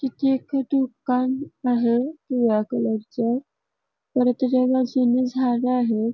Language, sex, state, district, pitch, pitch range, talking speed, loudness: Marathi, female, Karnataka, Belgaum, 250 Hz, 240-260 Hz, 115 wpm, -22 LUFS